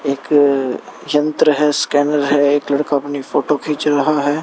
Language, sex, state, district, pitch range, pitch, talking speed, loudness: Hindi, male, Haryana, Rohtak, 145-150 Hz, 145 Hz, 175 wpm, -16 LUFS